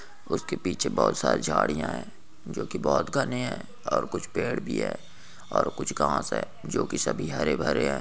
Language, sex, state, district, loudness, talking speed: Hindi, male, Bihar, Saharsa, -28 LUFS, 185 wpm